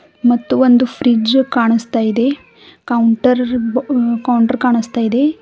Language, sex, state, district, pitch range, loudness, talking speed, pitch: Kannada, female, Karnataka, Bidar, 235-260 Hz, -14 LUFS, 110 wpm, 245 Hz